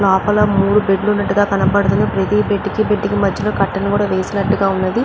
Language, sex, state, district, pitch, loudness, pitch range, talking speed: Telugu, female, Andhra Pradesh, Chittoor, 200 Hz, -16 LUFS, 195-205 Hz, 145 wpm